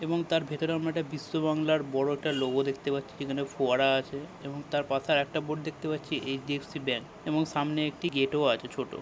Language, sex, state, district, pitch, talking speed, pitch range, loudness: Bengali, male, West Bengal, Kolkata, 150 Hz, 200 wpm, 140-155 Hz, -30 LUFS